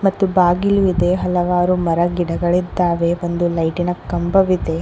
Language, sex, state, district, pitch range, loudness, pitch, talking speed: Kannada, female, Karnataka, Koppal, 175-185 Hz, -17 LUFS, 175 Hz, 135 wpm